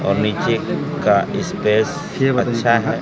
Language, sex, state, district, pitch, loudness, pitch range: Hindi, male, Bihar, Kaimur, 120 Hz, -18 LUFS, 110-135 Hz